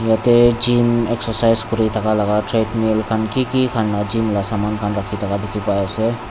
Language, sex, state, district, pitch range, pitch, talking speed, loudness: Nagamese, male, Nagaland, Dimapur, 105-115 Hz, 110 Hz, 160 wpm, -17 LUFS